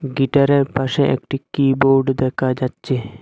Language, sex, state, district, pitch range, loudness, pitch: Bengali, male, Assam, Hailakandi, 130-140 Hz, -18 LUFS, 135 Hz